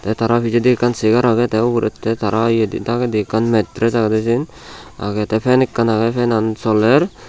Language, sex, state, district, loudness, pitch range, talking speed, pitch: Chakma, male, Tripura, Unakoti, -16 LUFS, 110-120 Hz, 180 wpm, 115 Hz